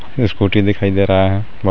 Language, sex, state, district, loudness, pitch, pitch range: Hindi, male, Jharkhand, Garhwa, -15 LUFS, 100 Hz, 95-100 Hz